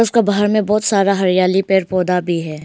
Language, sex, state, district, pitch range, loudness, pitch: Hindi, female, Arunachal Pradesh, Longding, 180-210 Hz, -15 LUFS, 190 Hz